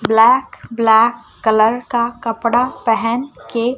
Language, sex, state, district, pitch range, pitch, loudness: Hindi, male, Chhattisgarh, Raipur, 225-245 Hz, 230 Hz, -16 LUFS